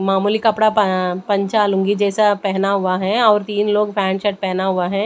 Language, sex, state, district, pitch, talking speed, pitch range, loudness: Hindi, female, Maharashtra, Gondia, 200 Hz, 200 wpm, 190-210 Hz, -17 LUFS